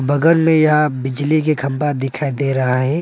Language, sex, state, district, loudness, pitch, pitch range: Hindi, male, Arunachal Pradesh, Papum Pare, -16 LUFS, 145 Hz, 135-155 Hz